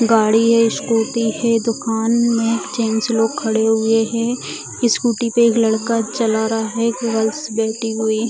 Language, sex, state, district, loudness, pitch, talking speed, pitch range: Hindi, female, Bihar, Sitamarhi, -17 LUFS, 230 Hz, 175 wpm, 220-230 Hz